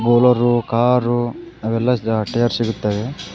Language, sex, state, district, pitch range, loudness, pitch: Kannada, male, Karnataka, Koppal, 115-125 Hz, -18 LUFS, 120 Hz